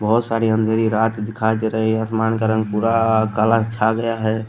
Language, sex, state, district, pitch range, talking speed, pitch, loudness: Hindi, male, Delhi, New Delhi, 110-115 Hz, 215 wpm, 110 Hz, -19 LUFS